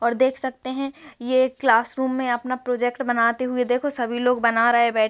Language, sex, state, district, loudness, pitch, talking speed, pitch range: Hindi, female, Bihar, Sitamarhi, -22 LUFS, 250 Hz, 235 wpm, 240-260 Hz